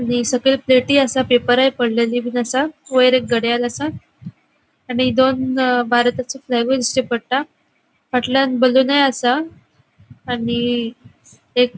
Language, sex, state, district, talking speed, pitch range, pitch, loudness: Konkani, female, Goa, North and South Goa, 120 wpm, 245-265 Hz, 255 Hz, -17 LUFS